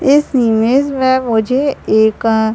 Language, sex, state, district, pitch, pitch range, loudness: Hindi, male, Bihar, Madhepura, 250 Hz, 220-270 Hz, -13 LUFS